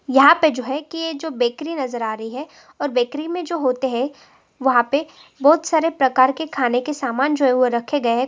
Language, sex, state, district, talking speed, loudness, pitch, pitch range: Hindi, female, Andhra Pradesh, Guntur, 225 wpm, -19 LUFS, 275 Hz, 255-310 Hz